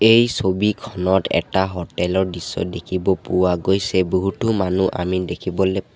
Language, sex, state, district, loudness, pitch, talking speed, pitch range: Assamese, male, Assam, Sonitpur, -20 LUFS, 95 Hz, 140 wpm, 90-95 Hz